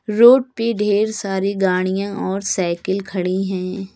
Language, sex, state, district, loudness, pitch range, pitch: Hindi, female, Uttar Pradesh, Lucknow, -18 LUFS, 190-210 Hz, 195 Hz